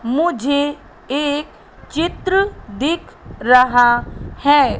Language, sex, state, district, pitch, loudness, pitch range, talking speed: Hindi, female, Madhya Pradesh, Katni, 285 Hz, -17 LUFS, 250-325 Hz, 75 wpm